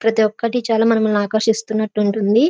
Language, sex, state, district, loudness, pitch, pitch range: Telugu, female, Andhra Pradesh, Anantapur, -17 LUFS, 220 Hz, 215-225 Hz